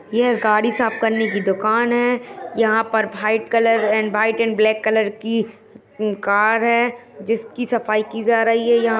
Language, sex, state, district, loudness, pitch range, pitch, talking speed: Hindi, female, Uttarakhand, Tehri Garhwal, -18 LUFS, 215-230 Hz, 225 Hz, 180 wpm